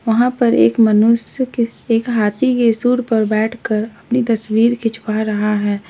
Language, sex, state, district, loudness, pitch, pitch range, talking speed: Hindi, female, Uttar Pradesh, Lalitpur, -16 LUFS, 225 Hz, 215-240 Hz, 160 wpm